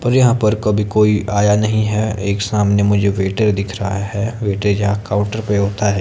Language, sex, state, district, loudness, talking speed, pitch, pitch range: Hindi, male, Himachal Pradesh, Shimla, -16 LUFS, 210 wpm, 105 Hz, 100-105 Hz